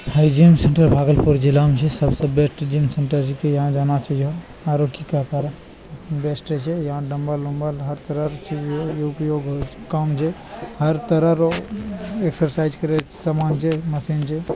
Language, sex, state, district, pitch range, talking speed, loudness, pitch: Maithili, male, Bihar, Bhagalpur, 145-160 Hz, 60 wpm, -20 LUFS, 150 Hz